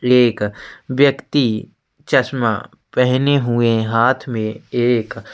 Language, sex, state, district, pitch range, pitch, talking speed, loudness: Hindi, male, Chhattisgarh, Sukma, 115-130 Hz, 120 Hz, 100 wpm, -17 LUFS